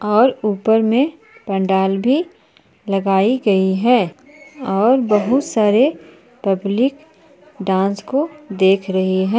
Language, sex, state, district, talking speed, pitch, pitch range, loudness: Hindi, female, Jharkhand, Palamu, 110 wpm, 215 Hz, 195-260 Hz, -17 LUFS